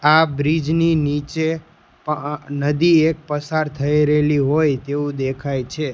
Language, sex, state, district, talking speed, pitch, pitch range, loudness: Gujarati, male, Gujarat, Gandhinagar, 140 wpm, 150 Hz, 145-155 Hz, -19 LUFS